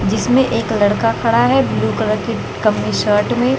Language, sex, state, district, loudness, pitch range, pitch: Hindi, female, Haryana, Jhajjar, -16 LUFS, 205-240 Hz, 220 Hz